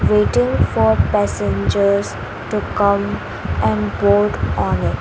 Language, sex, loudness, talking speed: English, female, -17 LUFS, 120 wpm